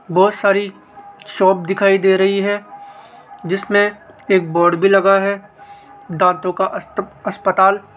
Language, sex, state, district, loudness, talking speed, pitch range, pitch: Hindi, male, Rajasthan, Jaipur, -16 LUFS, 130 wpm, 190-205 Hz, 195 Hz